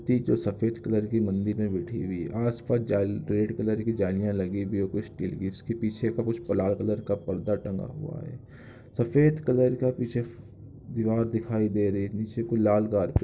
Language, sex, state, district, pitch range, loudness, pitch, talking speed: Hindi, male, Jharkhand, Jamtara, 100-120 Hz, -28 LUFS, 110 Hz, 215 wpm